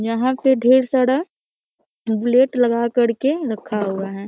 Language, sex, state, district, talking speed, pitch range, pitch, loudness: Hindi, female, Bihar, Muzaffarpur, 170 wpm, 225-260 Hz, 245 Hz, -18 LUFS